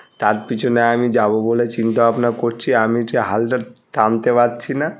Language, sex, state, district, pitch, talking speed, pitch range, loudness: Bengali, male, West Bengal, North 24 Parganas, 120 Hz, 180 wpm, 115-120 Hz, -17 LUFS